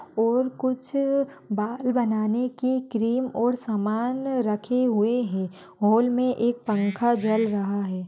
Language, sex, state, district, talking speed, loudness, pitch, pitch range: Hindi, female, Rajasthan, Churu, 135 wpm, -25 LUFS, 235 Hz, 215-255 Hz